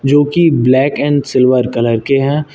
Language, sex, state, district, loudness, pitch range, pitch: Hindi, male, Uttar Pradesh, Lucknow, -12 LUFS, 130-145 Hz, 135 Hz